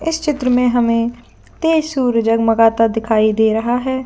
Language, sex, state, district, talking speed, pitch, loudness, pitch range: Hindi, female, Jharkhand, Jamtara, 175 wpm, 240 Hz, -15 LUFS, 225-260 Hz